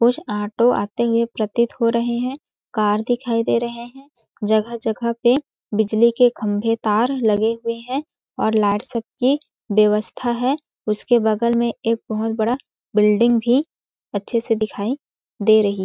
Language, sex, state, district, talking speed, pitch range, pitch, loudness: Hindi, female, Chhattisgarh, Balrampur, 160 wpm, 215-240 Hz, 230 Hz, -20 LUFS